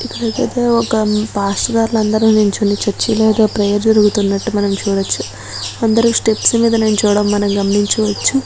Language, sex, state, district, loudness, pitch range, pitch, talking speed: Telugu, female, Andhra Pradesh, Chittoor, -14 LUFS, 205-225 Hz, 215 Hz, 120 wpm